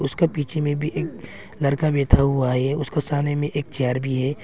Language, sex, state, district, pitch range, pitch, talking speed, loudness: Hindi, male, Arunachal Pradesh, Longding, 135-150 Hz, 145 Hz, 215 wpm, -22 LUFS